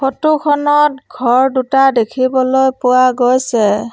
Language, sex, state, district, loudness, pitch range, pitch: Assamese, female, Assam, Sonitpur, -13 LUFS, 250-270 Hz, 260 Hz